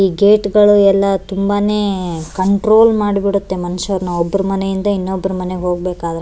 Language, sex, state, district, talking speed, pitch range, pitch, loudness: Kannada, male, Karnataka, Bellary, 145 wpm, 185-205 Hz, 195 Hz, -15 LUFS